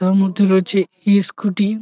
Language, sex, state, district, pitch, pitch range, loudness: Bengali, male, West Bengal, Jalpaiguri, 195 Hz, 190-205 Hz, -17 LUFS